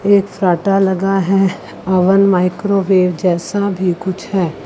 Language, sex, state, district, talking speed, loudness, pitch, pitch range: Hindi, female, Chandigarh, Chandigarh, 115 wpm, -15 LUFS, 190 Hz, 185-195 Hz